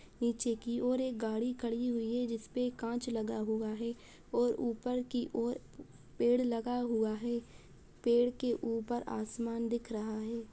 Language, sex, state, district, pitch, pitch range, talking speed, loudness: Hindi, female, Bihar, Araria, 235 Hz, 230-245 Hz, 160 wpm, -35 LUFS